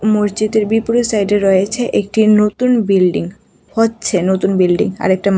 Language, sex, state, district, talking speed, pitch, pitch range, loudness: Bengali, female, Tripura, West Tripura, 165 wpm, 210 Hz, 190-225 Hz, -14 LUFS